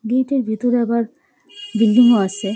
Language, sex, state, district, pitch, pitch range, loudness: Bengali, female, West Bengal, Jalpaiguri, 235 Hz, 220-255 Hz, -17 LUFS